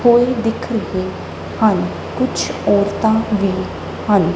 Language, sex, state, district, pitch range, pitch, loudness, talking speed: Punjabi, female, Punjab, Kapurthala, 200-230 Hz, 220 Hz, -18 LUFS, 95 wpm